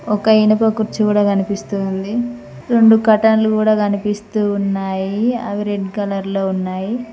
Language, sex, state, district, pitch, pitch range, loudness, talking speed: Telugu, female, Telangana, Mahabubabad, 210 Hz, 200-220 Hz, -16 LUFS, 135 wpm